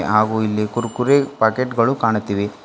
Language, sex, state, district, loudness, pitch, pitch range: Kannada, female, Karnataka, Bidar, -18 LUFS, 110 Hz, 105-125 Hz